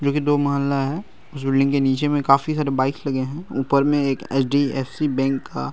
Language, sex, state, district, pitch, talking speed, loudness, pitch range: Hindi, male, Bihar, Araria, 140 Hz, 220 wpm, -21 LUFS, 135-145 Hz